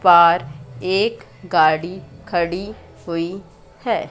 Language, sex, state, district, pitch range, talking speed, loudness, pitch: Hindi, female, Madhya Pradesh, Katni, 155-185 Hz, 90 wpm, -19 LUFS, 170 Hz